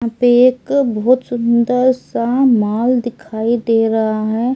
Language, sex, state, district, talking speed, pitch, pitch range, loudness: Hindi, female, Delhi, New Delhi, 145 wpm, 240 Hz, 225-255 Hz, -15 LUFS